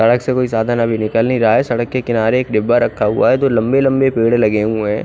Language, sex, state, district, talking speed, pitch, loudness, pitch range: Hindi, male, Odisha, Khordha, 260 wpm, 115 Hz, -15 LUFS, 110-125 Hz